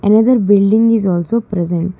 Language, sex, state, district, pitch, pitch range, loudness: English, female, Karnataka, Bangalore, 205 Hz, 180-225 Hz, -13 LUFS